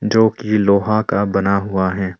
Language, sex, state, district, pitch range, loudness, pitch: Hindi, male, Arunachal Pradesh, Longding, 95-110 Hz, -17 LUFS, 100 Hz